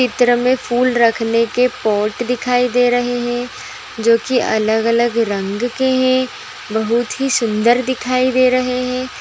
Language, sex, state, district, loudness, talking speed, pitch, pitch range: Magahi, female, Bihar, Gaya, -16 LUFS, 165 wpm, 245 Hz, 230-255 Hz